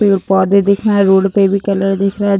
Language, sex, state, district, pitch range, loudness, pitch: Hindi, female, Uttar Pradesh, Deoria, 195-200 Hz, -13 LUFS, 195 Hz